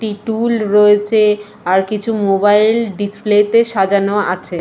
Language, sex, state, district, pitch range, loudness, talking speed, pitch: Bengali, female, West Bengal, Purulia, 205-220 Hz, -14 LUFS, 130 wpm, 210 Hz